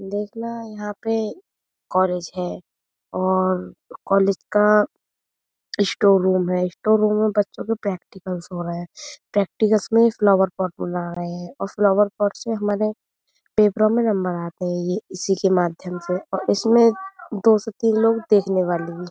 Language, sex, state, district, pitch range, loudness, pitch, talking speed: Hindi, female, Uttar Pradesh, Budaun, 180-215 Hz, -21 LUFS, 195 Hz, 160 wpm